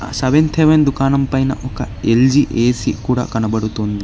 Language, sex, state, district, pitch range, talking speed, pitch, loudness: Telugu, male, Telangana, Hyderabad, 115-135 Hz, 135 wpm, 130 Hz, -15 LUFS